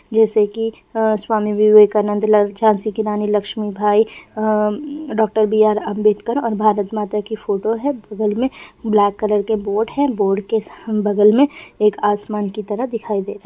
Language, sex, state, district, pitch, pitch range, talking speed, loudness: Hindi, female, Bihar, Bhagalpur, 215 Hz, 210-220 Hz, 125 wpm, -17 LUFS